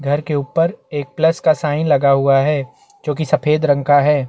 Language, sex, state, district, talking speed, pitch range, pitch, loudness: Hindi, male, Chhattisgarh, Bastar, 225 wpm, 145-155 Hz, 150 Hz, -16 LUFS